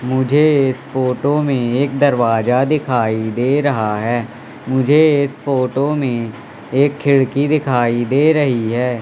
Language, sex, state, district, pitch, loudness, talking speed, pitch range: Hindi, male, Madhya Pradesh, Katni, 130 Hz, -16 LUFS, 125 wpm, 120-145 Hz